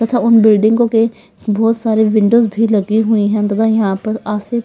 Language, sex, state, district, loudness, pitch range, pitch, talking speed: Hindi, female, Bihar, Patna, -13 LUFS, 210-225 Hz, 220 Hz, 195 wpm